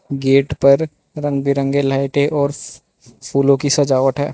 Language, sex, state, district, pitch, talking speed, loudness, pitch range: Hindi, male, Manipur, Imphal West, 140 Hz, 140 wpm, -16 LUFS, 135-145 Hz